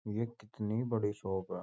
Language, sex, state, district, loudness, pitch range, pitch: Hindi, male, Uttar Pradesh, Jyotiba Phule Nagar, -37 LUFS, 105-115 Hz, 105 Hz